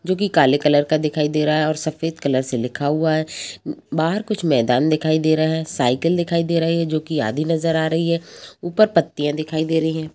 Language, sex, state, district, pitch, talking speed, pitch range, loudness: Hindi, female, Bihar, Jamui, 155 Hz, 225 wpm, 150-165 Hz, -19 LUFS